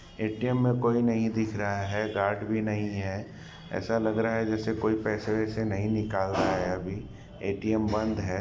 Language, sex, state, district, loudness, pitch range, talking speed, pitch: Hindi, male, Bihar, Sitamarhi, -29 LUFS, 100-110 Hz, 185 wpm, 110 Hz